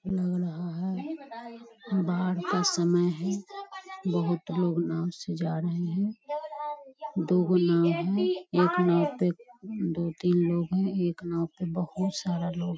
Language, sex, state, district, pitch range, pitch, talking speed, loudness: Hindi, female, Bihar, Lakhisarai, 175-195 Hz, 180 Hz, 145 wpm, -28 LUFS